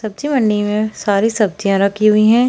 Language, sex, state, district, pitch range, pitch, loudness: Hindi, female, Chhattisgarh, Bilaspur, 205-220 Hz, 215 Hz, -15 LUFS